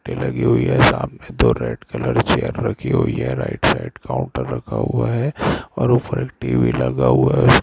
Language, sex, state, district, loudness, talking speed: Hindi, male, Bihar, Saran, -19 LUFS, 250 wpm